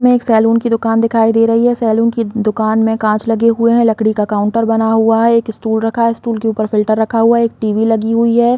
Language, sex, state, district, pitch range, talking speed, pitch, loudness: Hindi, female, Chhattisgarh, Bilaspur, 220-230 Hz, 270 wpm, 225 Hz, -13 LUFS